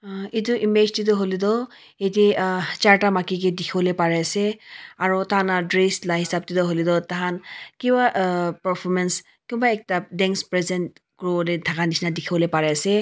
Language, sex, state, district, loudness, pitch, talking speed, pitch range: Nagamese, female, Nagaland, Kohima, -22 LUFS, 185 Hz, 155 wpm, 175-205 Hz